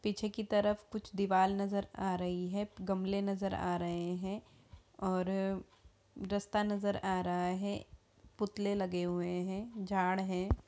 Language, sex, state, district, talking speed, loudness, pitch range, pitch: Hindi, female, Bihar, Jahanabad, 145 wpm, -36 LUFS, 185-205 Hz, 195 Hz